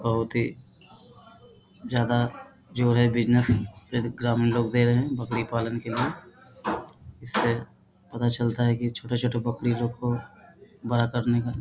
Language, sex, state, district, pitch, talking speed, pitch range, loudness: Hindi, male, Bihar, Bhagalpur, 120 Hz, 150 wpm, 115-120 Hz, -26 LUFS